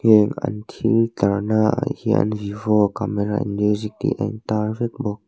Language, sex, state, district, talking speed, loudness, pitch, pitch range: Mizo, male, Mizoram, Aizawl, 160 wpm, -21 LUFS, 105 Hz, 105-110 Hz